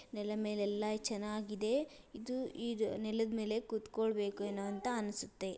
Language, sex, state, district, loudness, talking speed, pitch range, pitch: Kannada, female, Karnataka, Dharwad, -38 LUFS, 130 wpm, 205-225 Hz, 215 Hz